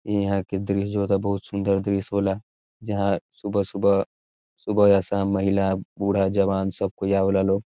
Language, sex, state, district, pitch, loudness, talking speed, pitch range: Bhojpuri, male, Bihar, Saran, 100 Hz, -23 LUFS, 180 wpm, 95-100 Hz